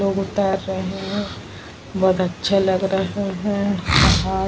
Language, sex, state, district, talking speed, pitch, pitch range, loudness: Hindi, female, Bihar, Vaishali, 135 wpm, 190 Hz, 185-195 Hz, -20 LUFS